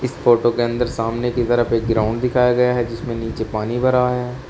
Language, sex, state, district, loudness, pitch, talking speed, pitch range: Hindi, male, Uttar Pradesh, Shamli, -19 LUFS, 120 Hz, 215 wpm, 115-125 Hz